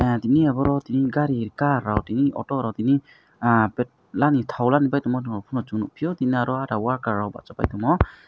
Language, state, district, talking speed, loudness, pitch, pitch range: Kokborok, Tripura, West Tripura, 110 wpm, -23 LUFS, 125 Hz, 115-140 Hz